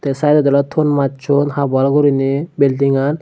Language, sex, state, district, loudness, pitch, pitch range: Chakma, male, Tripura, Dhalai, -15 LUFS, 140 Hz, 135-145 Hz